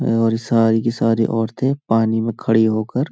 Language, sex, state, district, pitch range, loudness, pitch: Hindi, male, Uttar Pradesh, Hamirpur, 110-115 Hz, -18 LUFS, 115 Hz